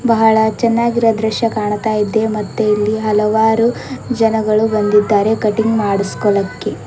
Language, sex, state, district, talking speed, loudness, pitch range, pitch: Kannada, female, Karnataka, Bidar, 105 wpm, -15 LUFS, 210-225 Hz, 220 Hz